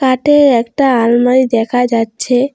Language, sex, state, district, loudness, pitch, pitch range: Bengali, female, West Bengal, Alipurduar, -12 LUFS, 250 Hz, 235-265 Hz